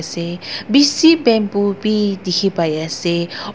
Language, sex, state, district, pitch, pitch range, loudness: Nagamese, female, Nagaland, Dimapur, 200 Hz, 170-215 Hz, -16 LUFS